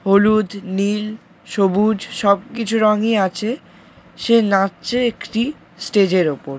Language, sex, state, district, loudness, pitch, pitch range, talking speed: Bengali, male, West Bengal, Jalpaiguri, -18 LUFS, 205 Hz, 195-225 Hz, 130 wpm